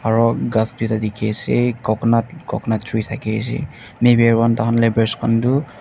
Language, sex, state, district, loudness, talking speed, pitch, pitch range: Nagamese, male, Nagaland, Dimapur, -18 LUFS, 145 wpm, 115 Hz, 110-115 Hz